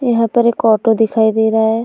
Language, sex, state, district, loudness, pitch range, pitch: Hindi, female, Uttar Pradesh, Hamirpur, -13 LUFS, 220-235 Hz, 225 Hz